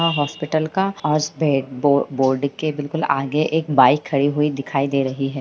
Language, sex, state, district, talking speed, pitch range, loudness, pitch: Hindi, female, Bihar, Jahanabad, 175 wpm, 135-155 Hz, -20 LUFS, 145 Hz